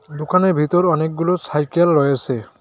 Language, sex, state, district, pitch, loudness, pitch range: Bengali, male, West Bengal, Cooch Behar, 155 Hz, -17 LUFS, 145-175 Hz